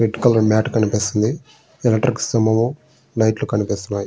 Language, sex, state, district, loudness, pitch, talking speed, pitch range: Telugu, male, Andhra Pradesh, Srikakulam, -18 LUFS, 110 Hz, 120 wpm, 105-120 Hz